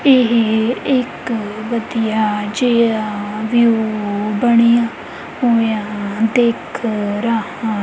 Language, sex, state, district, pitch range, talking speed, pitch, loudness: Punjabi, female, Punjab, Kapurthala, 215-235 Hz, 70 wpm, 225 Hz, -17 LUFS